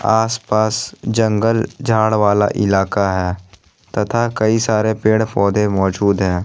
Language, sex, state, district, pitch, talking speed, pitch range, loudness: Hindi, male, Jharkhand, Ranchi, 110 Hz, 110 wpm, 100-110 Hz, -16 LUFS